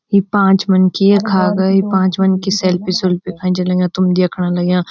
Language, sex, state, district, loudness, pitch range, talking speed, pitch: Garhwali, female, Uttarakhand, Uttarkashi, -14 LUFS, 180-195 Hz, 185 wpm, 185 Hz